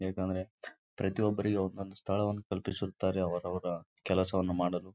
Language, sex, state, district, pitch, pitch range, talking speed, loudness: Kannada, male, Karnataka, Raichur, 95 Hz, 95-100 Hz, 110 wpm, -34 LUFS